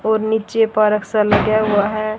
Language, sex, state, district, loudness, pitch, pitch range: Hindi, female, Haryana, Rohtak, -16 LUFS, 215 Hz, 210-220 Hz